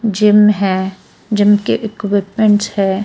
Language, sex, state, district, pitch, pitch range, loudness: Hindi, female, Bihar, Patna, 205 Hz, 195-210 Hz, -14 LUFS